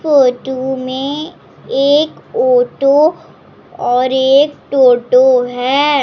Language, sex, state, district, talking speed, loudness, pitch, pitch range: Hindi, female, Bihar, Kishanganj, 80 wpm, -13 LUFS, 270 Hz, 255-295 Hz